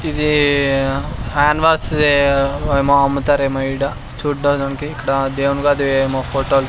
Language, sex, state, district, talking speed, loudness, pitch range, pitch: Telugu, male, Andhra Pradesh, Sri Satya Sai, 125 wpm, -16 LUFS, 135-145 Hz, 140 Hz